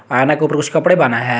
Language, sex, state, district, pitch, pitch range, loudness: Hindi, male, Jharkhand, Garhwa, 150 Hz, 125-155 Hz, -14 LUFS